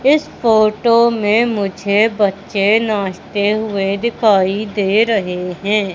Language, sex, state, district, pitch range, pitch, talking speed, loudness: Hindi, female, Madhya Pradesh, Umaria, 200-220 Hz, 210 Hz, 110 wpm, -15 LUFS